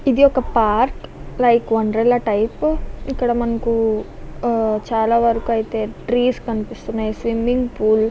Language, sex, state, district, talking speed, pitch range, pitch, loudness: Telugu, female, Andhra Pradesh, Visakhapatnam, 125 wpm, 220-245 Hz, 230 Hz, -19 LUFS